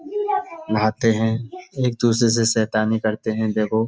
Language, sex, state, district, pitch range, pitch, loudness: Hindi, male, Uttar Pradesh, Budaun, 110-125 Hz, 115 Hz, -21 LUFS